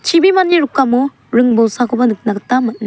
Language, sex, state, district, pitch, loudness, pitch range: Garo, female, Meghalaya, South Garo Hills, 245 Hz, -13 LUFS, 230-280 Hz